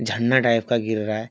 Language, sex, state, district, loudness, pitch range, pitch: Hindi, male, Bihar, Kishanganj, -21 LUFS, 110-120 Hz, 115 Hz